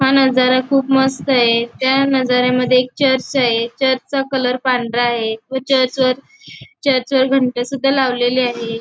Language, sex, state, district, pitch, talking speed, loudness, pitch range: Marathi, female, Goa, North and South Goa, 255 Hz, 145 wpm, -16 LUFS, 250-265 Hz